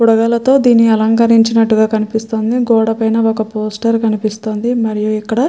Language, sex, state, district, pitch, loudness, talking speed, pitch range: Telugu, female, Andhra Pradesh, Chittoor, 225 Hz, -13 LUFS, 130 wpm, 220-230 Hz